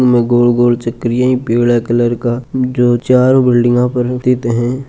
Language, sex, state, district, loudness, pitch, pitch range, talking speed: Marwari, male, Rajasthan, Churu, -13 LUFS, 120 Hz, 120-125 Hz, 170 wpm